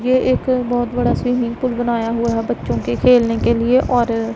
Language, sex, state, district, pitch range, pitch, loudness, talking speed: Hindi, female, Punjab, Pathankot, 230-250 Hz, 240 Hz, -17 LUFS, 205 wpm